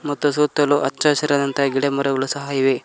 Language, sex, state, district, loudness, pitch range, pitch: Kannada, male, Karnataka, Koppal, -19 LUFS, 140-145 Hz, 140 Hz